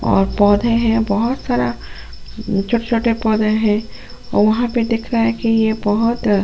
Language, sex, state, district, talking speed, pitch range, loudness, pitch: Hindi, female, Goa, North and South Goa, 185 wpm, 210-230 Hz, -17 LUFS, 220 Hz